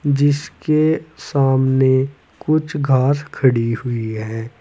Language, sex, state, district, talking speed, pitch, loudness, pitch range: Hindi, male, Uttar Pradesh, Saharanpur, 90 wpm, 135 Hz, -18 LUFS, 120-145 Hz